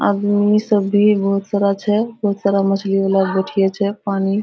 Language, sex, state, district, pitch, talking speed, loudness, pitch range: Hindi, female, Bihar, Araria, 200 Hz, 190 wpm, -17 LUFS, 195-205 Hz